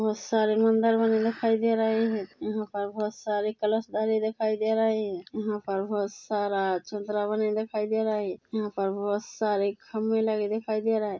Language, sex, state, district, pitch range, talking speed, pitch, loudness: Hindi, female, Chhattisgarh, Korba, 205-220 Hz, 205 wpm, 215 Hz, -27 LUFS